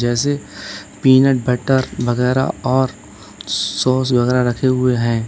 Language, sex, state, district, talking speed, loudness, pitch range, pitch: Hindi, male, Uttar Pradesh, Lalitpur, 115 wpm, -17 LUFS, 115-130 Hz, 125 Hz